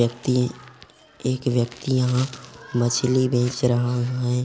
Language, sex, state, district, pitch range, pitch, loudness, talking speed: Hindi, male, Chhattisgarh, Korba, 120-125 Hz, 125 Hz, -23 LUFS, 110 wpm